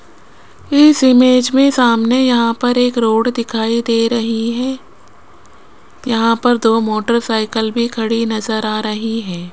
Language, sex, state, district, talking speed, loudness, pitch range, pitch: Hindi, female, Rajasthan, Jaipur, 140 wpm, -14 LUFS, 225-245 Hz, 230 Hz